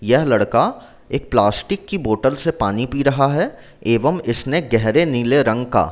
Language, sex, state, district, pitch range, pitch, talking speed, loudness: Hindi, male, Chhattisgarh, Rajnandgaon, 115-160 Hz, 130 Hz, 180 wpm, -18 LUFS